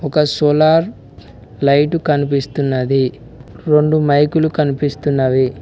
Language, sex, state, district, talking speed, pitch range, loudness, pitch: Telugu, male, Telangana, Mahabubabad, 75 wpm, 130-150 Hz, -15 LUFS, 145 Hz